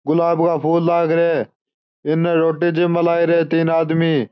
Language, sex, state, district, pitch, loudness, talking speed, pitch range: Marwari, male, Rajasthan, Churu, 165 Hz, -17 LUFS, 195 wpm, 160-170 Hz